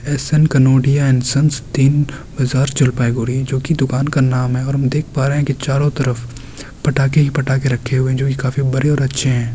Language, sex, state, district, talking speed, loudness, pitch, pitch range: Hindi, male, Bihar, Kishanganj, 220 wpm, -16 LUFS, 135 Hz, 130-140 Hz